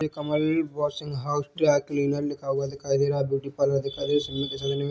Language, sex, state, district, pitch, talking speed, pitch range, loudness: Hindi, male, Chhattisgarh, Bilaspur, 140 Hz, 220 wpm, 140-145 Hz, -26 LUFS